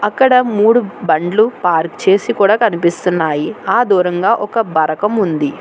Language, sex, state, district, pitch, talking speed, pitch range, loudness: Telugu, female, Telangana, Hyderabad, 200 Hz, 130 wpm, 170-225 Hz, -14 LUFS